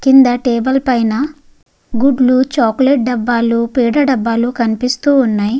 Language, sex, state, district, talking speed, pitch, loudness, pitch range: Telugu, female, Andhra Pradesh, Guntur, 105 wpm, 250 Hz, -13 LUFS, 235-270 Hz